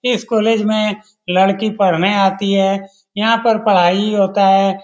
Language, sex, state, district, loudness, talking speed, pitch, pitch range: Hindi, male, Bihar, Lakhisarai, -15 LUFS, 125 wpm, 200 Hz, 195-215 Hz